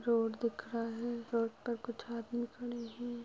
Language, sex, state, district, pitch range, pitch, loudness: Hindi, female, Uttar Pradesh, Budaun, 230-240 Hz, 235 Hz, -38 LUFS